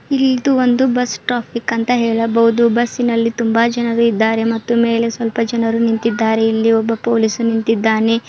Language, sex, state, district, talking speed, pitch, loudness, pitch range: Kannada, female, Karnataka, Shimoga, 145 wpm, 230 Hz, -15 LUFS, 225-235 Hz